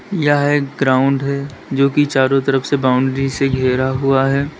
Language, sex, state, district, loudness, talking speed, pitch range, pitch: Hindi, male, Uttar Pradesh, Lalitpur, -16 LUFS, 185 wpm, 135-140 Hz, 135 Hz